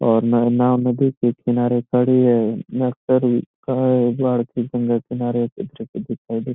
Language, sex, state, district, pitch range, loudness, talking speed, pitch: Hindi, male, Bihar, Gopalganj, 120-125 Hz, -19 LUFS, 100 wpm, 120 Hz